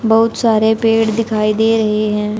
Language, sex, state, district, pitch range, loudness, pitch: Hindi, female, Haryana, Jhajjar, 215-225 Hz, -14 LUFS, 220 Hz